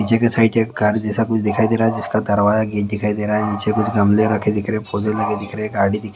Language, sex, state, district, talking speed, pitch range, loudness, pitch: Hindi, male, West Bengal, Purulia, 290 wpm, 105-110 Hz, -18 LUFS, 105 Hz